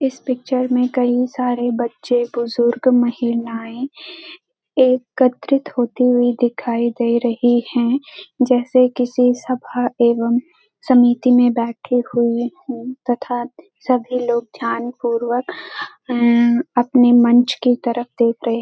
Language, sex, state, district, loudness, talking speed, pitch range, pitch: Hindi, female, Uttarakhand, Uttarkashi, -17 LUFS, 115 wpm, 240-255 Hz, 245 Hz